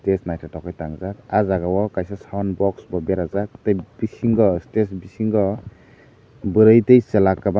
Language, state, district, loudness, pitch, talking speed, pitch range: Kokborok, Tripura, Dhalai, -20 LUFS, 100 Hz, 150 wpm, 95-110 Hz